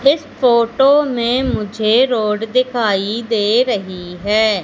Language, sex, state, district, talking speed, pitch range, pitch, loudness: Hindi, female, Madhya Pradesh, Katni, 115 wpm, 210-255 Hz, 230 Hz, -15 LUFS